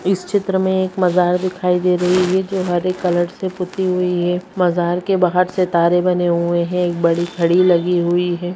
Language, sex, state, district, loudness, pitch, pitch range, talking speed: Hindi, male, Bihar, Muzaffarpur, -17 LUFS, 180 Hz, 175-185 Hz, 205 wpm